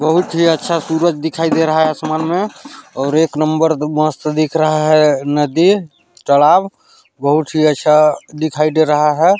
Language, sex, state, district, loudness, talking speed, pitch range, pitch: Chhattisgarhi, male, Chhattisgarh, Balrampur, -14 LUFS, 165 wpm, 150-165 Hz, 155 Hz